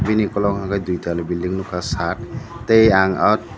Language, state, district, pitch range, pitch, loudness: Kokborok, Tripura, Dhalai, 90-110 Hz, 95 Hz, -19 LUFS